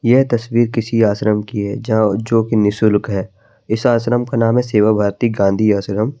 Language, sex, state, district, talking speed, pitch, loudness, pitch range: Hindi, male, Madhya Pradesh, Bhopal, 195 wpm, 110 Hz, -16 LUFS, 105-115 Hz